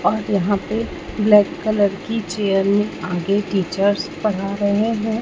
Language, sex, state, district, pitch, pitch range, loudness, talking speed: Hindi, male, Chhattisgarh, Raipur, 205 Hz, 195-215 Hz, -19 LUFS, 150 wpm